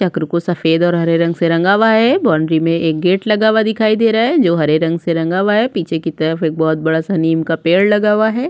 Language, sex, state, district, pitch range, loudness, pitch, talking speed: Hindi, female, Chhattisgarh, Sukma, 160-210 Hz, -14 LUFS, 170 Hz, 280 wpm